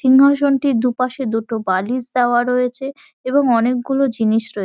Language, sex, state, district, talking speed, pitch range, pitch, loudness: Bengali, female, West Bengal, Dakshin Dinajpur, 155 wpm, 235-270 Hz, 250 Hz, -17 LUFS